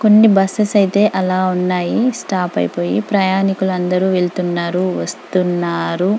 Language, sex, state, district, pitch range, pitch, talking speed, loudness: Telugu, female, Telangana, Karimnagar, 180-200 Hz, 185 Hz, 105 wpm, -16 LUFS